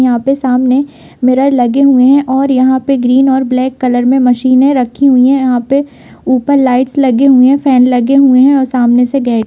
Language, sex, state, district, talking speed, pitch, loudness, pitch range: Hindi, female, Bihar, Kishanganj, 220 wpm, 260 Hz, -9 LUFS, 250-275 Hz